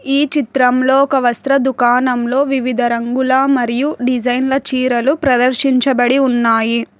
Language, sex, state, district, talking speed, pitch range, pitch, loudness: Telugu, female, Telangana, Hyderabad, 110 wpm, 245-270 Hz, 255 Hz, -14 LUFS